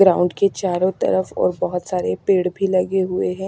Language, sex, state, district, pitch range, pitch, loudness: Hindi, female, Chhattisgarh, Raipur, 180-195 Hz, 185 Hz, -20 LUFS